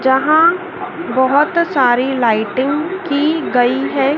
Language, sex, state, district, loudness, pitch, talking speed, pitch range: Hindi, female, Madhya Pradesh, Dhar, -15 LUFS, 285 Hz, 100 wpm, 260-335 Hz